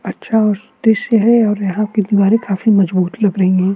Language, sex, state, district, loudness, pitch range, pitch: Hindi, male, Uttarakhand, Tehri Garhwal, -14 LUFS, 195-220 Hz, 210 Hz